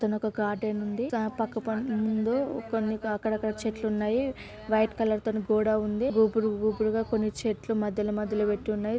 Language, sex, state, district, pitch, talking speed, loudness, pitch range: Telugu, female, Telangana, Karimnagar, 220 Hz, 135 wpm, -28 LUFS, 215-225 Hz